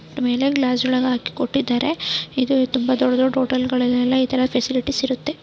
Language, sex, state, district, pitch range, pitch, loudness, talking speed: Kannada, female, Karnataka, Shimoga, 255-265 Hz, 255 Hz, -20 LUFS, 155 wpm